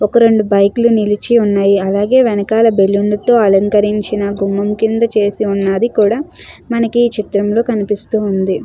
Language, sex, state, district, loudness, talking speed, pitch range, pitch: Telugu, female, Andhra Pradesh, Chittoor, -13 LUFS, 140 wpm, 200-230 Hz, 210 Hz